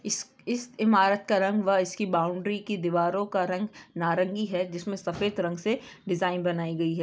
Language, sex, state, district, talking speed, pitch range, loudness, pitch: Hindi, female, Chhattisgarh, Bilaspur, 180 wpm, 175-205 Hz, -28 LUFS, 195 Hz